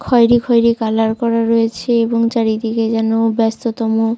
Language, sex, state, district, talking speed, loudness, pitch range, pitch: Bengali, female, West Bengal, Jalpaiguri, 130 wpm, -15 LUFS, 225-230 Hz, 230 Hz